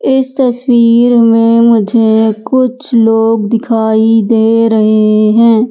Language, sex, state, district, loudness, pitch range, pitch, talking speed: Hindi, female, Madhya Pradesh, Katni, -9 LUFS, 220-240 Hz, 230 Hz, 105 wpm